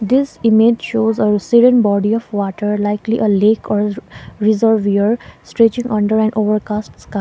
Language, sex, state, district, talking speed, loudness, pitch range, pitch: English, female, Sikkim, Gangtok, 150 wpm, -15 LUFS, 210-225 Hz, 215 Hz